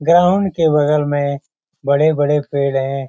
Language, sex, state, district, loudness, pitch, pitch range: Hindi, male, Bihar, Lakhisarai, -16 LUFS, 145 Hz, 140-160 Hz